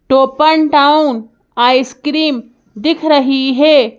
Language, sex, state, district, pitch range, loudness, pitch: Hindi, female, Madhya Pradesh, Bhopal, 255-300 Hz, -12 LUFS, 275 Hz